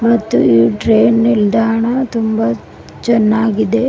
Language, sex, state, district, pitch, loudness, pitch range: Kannada, female, Karnataka, Bidar, 220 Hz, -13 LUFS, 150-230 Hz